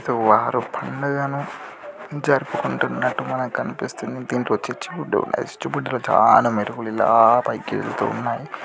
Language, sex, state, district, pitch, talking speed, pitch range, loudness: Telugu, male, Telangana, Nalgonda, 140 Hz, 105 wpm, 140-150 Hz, -21 LUFS